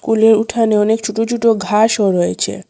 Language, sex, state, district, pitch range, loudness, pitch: Bengali, female, Assam, Hailakandi, 210-225 Hz, -14 LUFS, 220 Hz